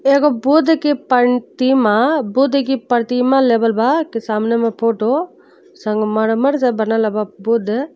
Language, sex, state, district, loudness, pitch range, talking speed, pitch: Bhojpuri, female, Uttar Pradesh, Deoria, -16 LUFS, 225-275 Hz, 145 wpm, 250 Hz